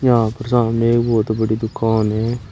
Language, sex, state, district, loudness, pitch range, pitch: Hindi, male, Uttar Pradesh, Shamli, -18 LUFS, 110-120 Hz, 115 Hz